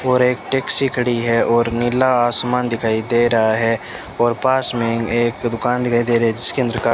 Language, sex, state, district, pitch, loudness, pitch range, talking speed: Hindi, male, Rajasthan, Bikaner, 120 Hz, -17 LUFS, 115-125 Hz, 210 wpm